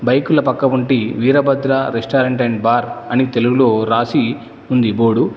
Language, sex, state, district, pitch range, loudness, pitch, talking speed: Telugu, male, Telangana, Mahabubabad, 115-135 Hz, -15 LUFS, 125 Hz, 135 wpm